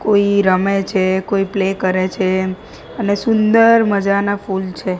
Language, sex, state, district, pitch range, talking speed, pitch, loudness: Gujarati, female, Gujarat, Gandhinagar, 190-205 Hz, 145 wpm, 195 Hz, -16 LUFS